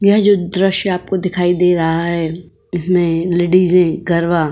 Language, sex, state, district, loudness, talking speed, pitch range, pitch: Hindi, female, Uttar Pradesh, Jyotiba Phule Nagar, -15 LUFS, 160 wpm, 170-185 Hz, 175 Hz